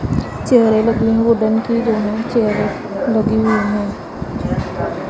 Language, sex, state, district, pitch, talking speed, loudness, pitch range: Hindi, female, Punjab, Pathankot, 225 Hz, 120 wpm, -17 LUFS, 215-230 Hz